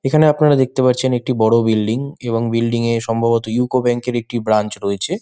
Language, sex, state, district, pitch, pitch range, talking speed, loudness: Bengali, male, West Bengal, Malda, 120 Hz, 115-130 Hz, 195 wpm, -17 LUFS